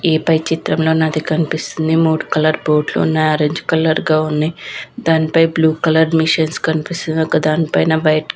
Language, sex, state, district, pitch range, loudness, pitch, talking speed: Telugu, female, Andhra Pradesh, Visakhapatnam, 155-160 Hz, -15 LUFS, 160 Hz, 160 wpm